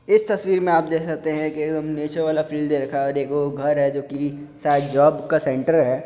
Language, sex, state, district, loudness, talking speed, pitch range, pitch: Maithili, male, Bihar, Begusarai, -21 LUFS, 255 wpm, 140-160 Hz, 150 Hz